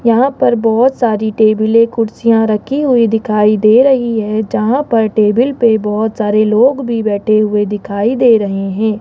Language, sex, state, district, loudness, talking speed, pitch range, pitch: Hindi, male, Rajasthan, Jaipur, -12 LUFS, 180 wpm, 215-235 Hz, 225 Hz